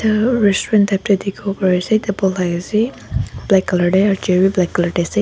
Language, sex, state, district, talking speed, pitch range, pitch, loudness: Nagamese, female, Nagaland, Dimapur, 240 wpm, 180-210 Hz, 195 Hz, -16 LUFS